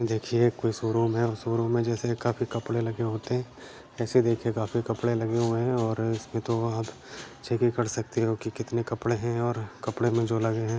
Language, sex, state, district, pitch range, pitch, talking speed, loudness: Hindi, male, Bihar, Bhagalpur, 115-120 Hz, 115 Hz, 210 wpm, -28 LUFS